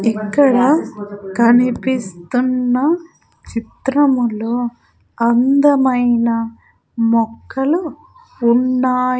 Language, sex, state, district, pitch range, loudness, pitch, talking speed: Telugu, female, Andhra Pradesh, Sri Satya Sai, 230-265 Hz, -16 LUFS, 245 Hz, 40 wpm